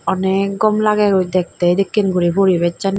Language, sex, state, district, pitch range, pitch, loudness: Chakma, female, Tripura, Dhalai, 180-200 Hz, 190 Hz, -16 LUFS